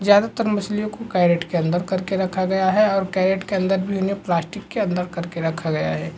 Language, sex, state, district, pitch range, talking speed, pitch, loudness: Hindi, male, Bihar, Supaul, 175-205 Hz, 225 wpm, 190 Hz, -21 LUFS